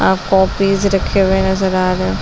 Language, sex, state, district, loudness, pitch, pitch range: Hindi, female, Chhattisgarh, Balrampur, -14 LUFS, 190 Hz, 185-195 Hz